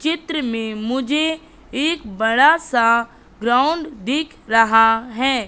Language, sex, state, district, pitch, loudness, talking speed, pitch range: Hindi, female, Madhya Pradesh, Katni, 255 Hz, -18 LUFS, 110 wpm, 225-315 Hz